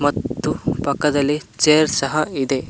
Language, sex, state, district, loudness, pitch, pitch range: Kannada, male, Karnataka, Koppal, -19 LUFS, 145 Hz, 135-150 Hz